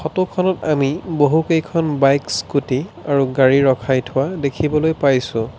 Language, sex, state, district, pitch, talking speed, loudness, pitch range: Assamese, male, Assam, Sonitpur, 145 Hz, 120 wpm, -17 LUFS, 135-160 Hz